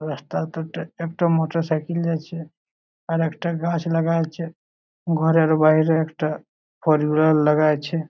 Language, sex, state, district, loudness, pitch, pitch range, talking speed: Bengali, male, West Bengal, Malda, -21 LUFS, 160 Hz, 155-165 Hz, 105 wpm